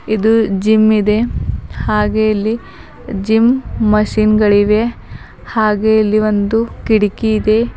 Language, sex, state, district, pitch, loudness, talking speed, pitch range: Kannada, female, Karnataka, Bidar, 215 Hz, -14 LUFS, 100 wpm, 210-220 Hz